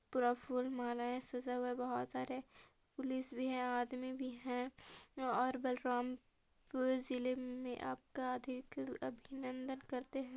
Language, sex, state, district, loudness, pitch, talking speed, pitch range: Hindi, female, Chhattisgarh, Balrampur, -42 LUFS, 255 Hz, 140 wpm, 245-260 Hz